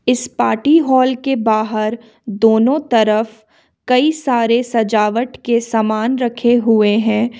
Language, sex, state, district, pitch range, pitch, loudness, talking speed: Hindi, female, Jharkhand, Ranchi, 220-250 Hz, 230 Hz, -15 LUFS, 120 wpm